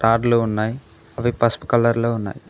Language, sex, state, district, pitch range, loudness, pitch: Telugu, male, Telangana, Mahabubabad, 110-115 Hz, -20 LUFS, 115 Hz